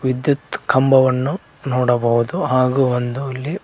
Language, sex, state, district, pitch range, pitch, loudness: Kannada, male, Karnataka, Koppal, 125-140 Hz, 130 Hz, -18 LUFS